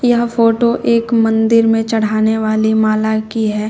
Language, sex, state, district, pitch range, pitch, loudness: Hindi, female, Uttar Pradesh, Shamli, 220-230 Hz, 225 Hz, -14 LUFS